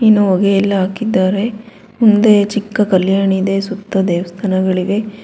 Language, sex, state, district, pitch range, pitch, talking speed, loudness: Kannada, female, Karnataka, Bangalore, 190-215 Hz, 200 Hz, 115 wpm, -14 LUFS